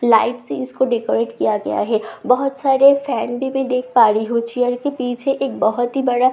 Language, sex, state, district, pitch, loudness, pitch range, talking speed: Hindi, female, Bihar, Katihar, 250 Hz, -18 LUFS, 230-270 Hz, 225 wpm